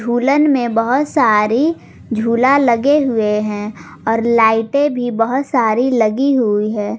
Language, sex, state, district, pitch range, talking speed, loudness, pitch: Hindi, female, Jharkhand, Garhwa, 220-275 Hz, 135 wpm, -15 LUFS, 235 Hz